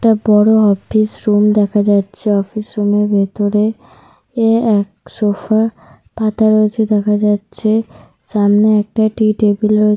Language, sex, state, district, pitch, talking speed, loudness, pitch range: Bengali, female, Jharkhand, Sahebganj, 210 Hz, 125 wpm, -14 LUFS, 205-215 Hz